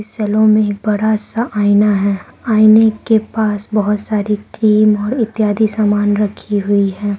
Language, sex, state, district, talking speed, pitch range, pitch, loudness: Hindi, female, Arunachal Pradesh, Lower Dibang Valley, 160 wpm, 205-215 Hz, 210 Hz, -14 LUFS